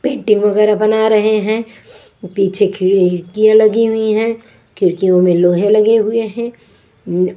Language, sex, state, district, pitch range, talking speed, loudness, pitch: Hindi, female, Bihar, West Champaran, 190-225 Hz, 140 wpm, -13 LUFS, 215 Hz